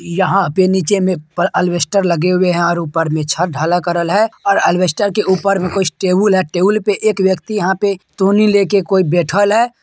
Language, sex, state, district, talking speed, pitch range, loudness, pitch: Hindi, male, Bihar, Purnia, 200 wpm, 175-200 Hz, -14 LUFS, 190 Hz